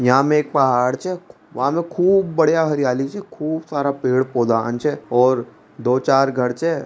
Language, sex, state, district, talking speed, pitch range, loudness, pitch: Hindi, male, Rajasthan, Nagaur, 165 wpm, 125-160 Hz, -19 LUFS, 135 Hz